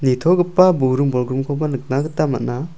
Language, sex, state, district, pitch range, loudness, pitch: Garo, male, Meghalaya, South Garo Hills, 130-160 Hz, -18 LUFS, 140 Hz